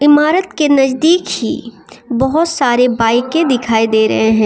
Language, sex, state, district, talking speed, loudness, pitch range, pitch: Hindi, female, Jharkhand, Deoghar, 150 wpm, -13 LUFS, 235-310 Hz, 265 Hz